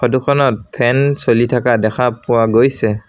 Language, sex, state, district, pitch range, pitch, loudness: Assamese, male, Assam, Sonitpur, 115-130 Hz, 120 Hz, -14 LUFS